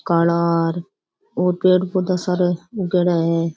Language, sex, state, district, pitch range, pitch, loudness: Rajasthani, female, Rajasthan, Churu, 170-185 Hz, 180 Hz, -19 LUFS